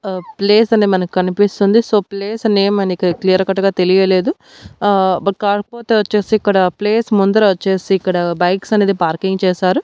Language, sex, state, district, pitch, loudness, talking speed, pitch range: Telugu, female, Andhra Pradesh, Annamaya, 195 Hz, -15 LUFS, 160 wpm, 185-210 Hz